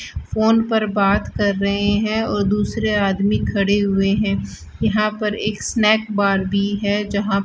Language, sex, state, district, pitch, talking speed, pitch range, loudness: Hindi, female, Rajasthan, Bikaner, 205 Hz, 170 wpm, 195-215 Hz, -19 LUFS